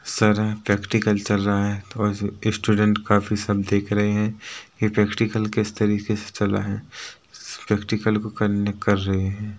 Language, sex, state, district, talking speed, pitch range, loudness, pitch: Hindi, male, Chhattisgarh, Rajnandgaon, 170 wpm, 100-105 Hz, -22 LUFS, 105 Hz